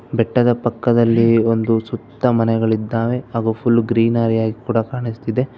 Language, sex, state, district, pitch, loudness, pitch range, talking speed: Kannada, male, Karnataka, Bangalore, 115 Hz, -17 LUFS, 115-120 Hz, 130 wpm